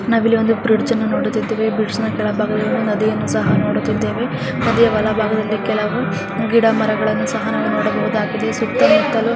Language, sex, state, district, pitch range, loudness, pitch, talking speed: Kannada, female, Karnataka, Chamarajanagar, 215-230 Hz, -17 LUFS, 220 Hz, 130 wpm